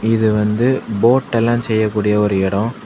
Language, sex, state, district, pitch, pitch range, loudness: Tamil, male, Tamil Nadu, Kanyakumari, 110 Hz, 105-115 Hz, -16 LUFS